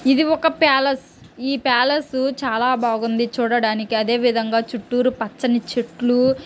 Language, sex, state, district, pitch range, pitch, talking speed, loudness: Telugu, male, Andhra Pradesh, Guntur, 235-270 Hz, 245 Hz, 110 wpm, -19 LUFS